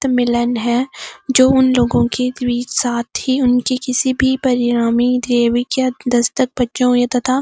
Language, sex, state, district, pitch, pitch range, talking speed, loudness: Hindi, female, Uttarakhand, Uttarkashi, 250 Hz, 240-260 Hz, 120 wpm, -16 LUFS